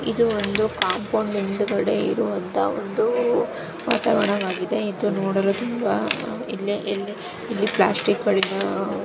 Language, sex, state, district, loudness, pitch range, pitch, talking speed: Kannada, female, Karnataka, Shimoga, -23 LUFS, 195-220 Hz, 205 Hz, 100 wpm